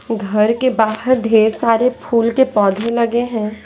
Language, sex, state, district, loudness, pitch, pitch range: Hindi, female, Bihar, Patna, -15 LUFS, 230 Hz, 220-240 Hz